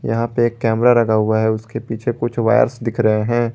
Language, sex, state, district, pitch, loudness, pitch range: Hindi, male, Jharkhand, Garhwa, 115 Hz, -17 LUFS, 110-120 Hz